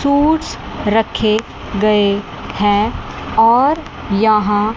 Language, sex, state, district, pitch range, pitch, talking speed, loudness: Hindi, female, Chandigarh, Chandigarh, 205-230 Hz, 215 Hz, 75 wpm, -15 LUFS